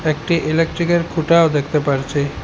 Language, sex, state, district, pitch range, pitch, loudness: Bengali, male, Assam, Hailakandi, 150-170 Hz, 155 Hz, -17 LUFS